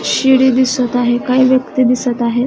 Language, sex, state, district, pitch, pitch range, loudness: Marathi, female, Maharashtra, Aurangabad, 255 Hz, 245-260 Hz, -13 LUFS